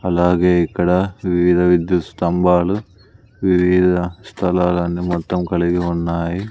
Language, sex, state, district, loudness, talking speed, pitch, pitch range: Telugu, male, Andhra Pradesh, Sri Satya Sai, -17 LUFS, 90 wpm, 90 Hz, 85-90 Hz